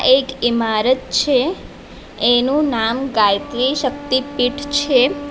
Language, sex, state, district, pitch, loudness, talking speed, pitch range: Gujarati, female, Gujarat, Valsad, 260 Hz, -17 LUFS, 90 wpm, 240-285 Hz